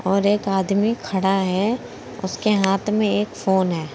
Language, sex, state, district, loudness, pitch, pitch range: Hindi, female, Uttar Pradesh, Saharanpur, -21 LUFS, 195 Hz, 190-210 Hz